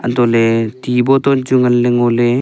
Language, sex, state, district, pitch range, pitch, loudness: Wancho, male, Arunachal Pradesh, Longding, 120-130 Hz, 120 Hz, -13 LUFS